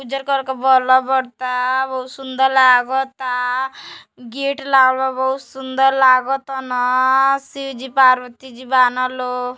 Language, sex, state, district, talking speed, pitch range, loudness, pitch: Hindi, female, Uttar Pradesh, Deoria, 130 wpm, 255-265 Hz, -17 LUFS, 260 Hz